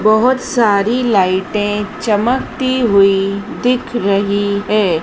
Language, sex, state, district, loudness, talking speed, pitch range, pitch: Hindi, female, Madhya Pradesh, Dhar, -15 LUFS, 95 wpm, 200-245 Hz, 210 Hz